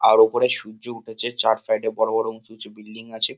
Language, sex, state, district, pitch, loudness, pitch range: Bengali, male, West Bengal, Kolkata, 110 Hz, -21 LUFS, 110-115 Hz